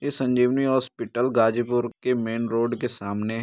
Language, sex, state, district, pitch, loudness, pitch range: Hindi, male, Uttar Pradesh, Ghazipur, 120 Hz, -24 LUFS, 115-125 Hz